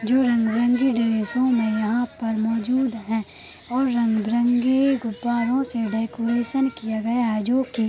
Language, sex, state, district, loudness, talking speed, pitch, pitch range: Hindi, female, Bihar, Purnia, -22 LUFS, 145 wpm, 235 Hz, 225-250 Hz